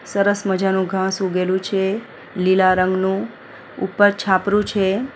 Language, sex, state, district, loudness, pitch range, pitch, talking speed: Gujarati, female, Gujarat, Valsad, -19 LUFS, 190-205 Hz, 195 Hz, 115 wpm